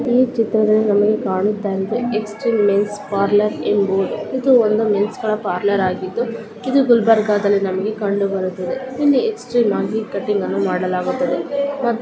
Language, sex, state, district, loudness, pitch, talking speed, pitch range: Kannada, female, Karnataka, Gulbarga, -18 LUFS, 215 Hz, 135 wpm, 200-235 Hz